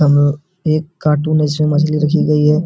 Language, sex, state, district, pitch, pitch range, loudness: Hindi, male, Bihar, Supaul, 150 Hz, 150-155 Hz, -15 LUFS